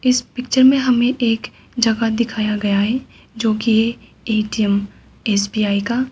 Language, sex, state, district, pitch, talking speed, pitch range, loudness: Hindi, female, Arunachal Pradesh, Papum Pare, 225 Hz, 125 wpm, 215-245 Hz, -18 LUFS